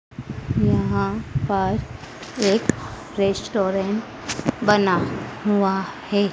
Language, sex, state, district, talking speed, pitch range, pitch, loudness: Hindi, female, Madhya Pradesh, Dhar, 65 wpm, 195-220 Hz, 205 Hz, -22 LUFS